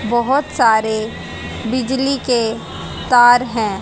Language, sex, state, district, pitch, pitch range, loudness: Hindi, female, Haryana, Jhajjar, 240 Hz, 220-255 Hz, -16 LUFS